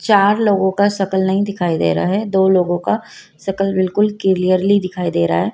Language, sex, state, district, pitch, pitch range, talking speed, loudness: Hindi, female, Madhya Pradesh, Dhar, 190 Hz, 185-200 Hz, 205 wpm, -16 LUFS